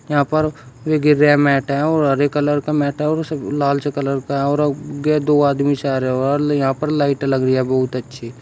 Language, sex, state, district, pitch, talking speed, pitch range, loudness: Hindi, male, Uttar Pradesh, Shamli, 145 Hz, 215 wpm, 135-150 Hz, -18 LUFS